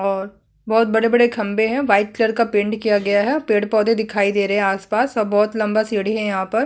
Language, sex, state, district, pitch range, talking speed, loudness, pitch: Hindi, female, Chhattisgarh, Kabirdham, 205-225 Hz, 235 wpm, -18 LUFS, 215 Hz